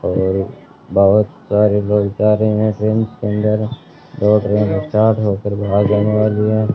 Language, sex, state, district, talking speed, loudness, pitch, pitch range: Hindi, male, Rajasthan, Bikaner, 160 wpm, -16 LUFS, 105 Hz, 100-110 Hz